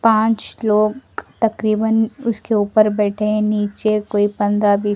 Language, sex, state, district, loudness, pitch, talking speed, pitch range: Hindi, female, Delhi, New Delhi, -18 LUFS, 215 Hz, 135 wpm, 205-220 Hz